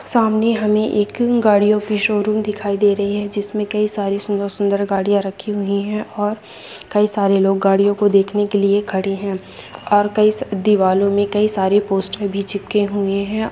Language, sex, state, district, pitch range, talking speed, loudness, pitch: Hindi, female, Bihar, Vaishali, 200-210 Hz, 180 wpm, -17 LUFS, 205 Hz